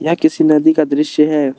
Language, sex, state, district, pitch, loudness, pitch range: Hindi, male, Arunachal Pradesh, Lower Dibang Valley, 150 Hz, -13 LUFS, 150-160 Hz